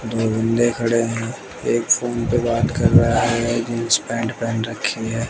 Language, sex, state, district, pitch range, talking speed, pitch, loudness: Hindi, male, Bihar, West Champaran, 115-120 Hz, 180 wpm, 115 Hz, -19 LUFS